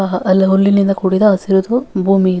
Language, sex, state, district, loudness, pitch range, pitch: Kannada, female, Karnataka, Dharwad, -13 LUFS, 190-200 Hz, 195 Hz